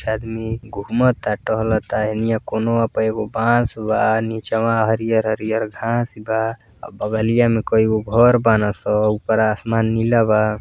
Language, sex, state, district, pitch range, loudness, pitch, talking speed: Bhojpuri, male, Uttar Pradesh, Deoria, 110-115 Hz, -19 LUFS, 110 Hz, 130 wpm